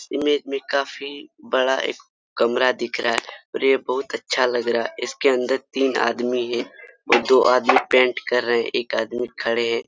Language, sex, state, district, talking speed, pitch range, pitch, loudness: Hindi, male, Jharkhand, Sahebganj, 205 wpm, 120-135 Hz, 125 Hz, -21 LUFS